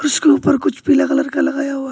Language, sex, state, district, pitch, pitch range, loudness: Hindi, male, West Bengal, Alipurduar, 290 Hz, 285-305 Hz, -16 LUFS